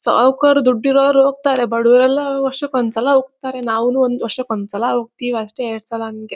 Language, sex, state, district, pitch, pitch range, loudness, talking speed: Kannada, female, Karnataka, Bellary, 250 Hz, 230-270 Hz, -16 LUFS, 170 wpm